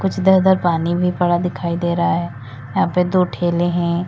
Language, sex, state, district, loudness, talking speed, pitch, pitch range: Hindi, female, Uttar Pradesh, Lalitpur, -18 LUFS, 205 wpm, 175 Hz, 170-180 Hz